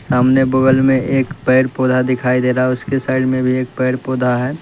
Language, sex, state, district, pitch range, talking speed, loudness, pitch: Hindi, male, Uttar Pradesh, Lalitpur, 125-130 Hz, 220 wpm, -15 LUFS, 130 Hz